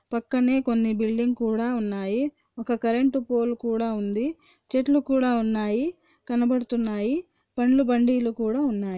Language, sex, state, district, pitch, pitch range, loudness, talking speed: Telugu, female, Andhra Pradesh, Anantapur, 240 Hz, 225-265 Hz, -25 LUFS, 120 wpm